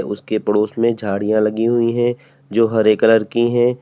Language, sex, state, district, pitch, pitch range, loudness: Hindi, male, Uttar Pradesh, Lalitpur, 115 Hz, 110-120 Hz, -17 LUFS